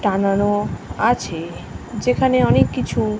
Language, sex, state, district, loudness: Bengali, female, West Bengal, North 24 Parganas, -19 LUFS